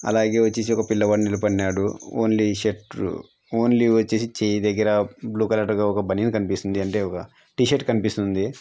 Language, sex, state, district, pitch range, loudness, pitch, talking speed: Telugu, male, Andhra Pradesh, Anantapur, 105-115 Hz, -22 LUFS, 110 Hz, 145 wpm